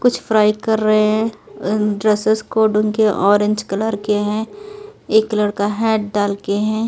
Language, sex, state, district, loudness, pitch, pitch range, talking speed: Hindi, female, Delhi, New Delhi, -17 LUFS, 215 Hz, 210-220 Hz, 165 wpm